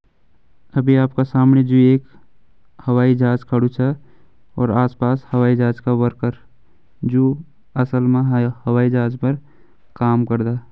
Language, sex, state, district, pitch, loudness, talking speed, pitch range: Hindi, male, Uttarakhand, Uttarkashi, 125 Hz, -18 LUFS, 135 wpm, 120-130 Hz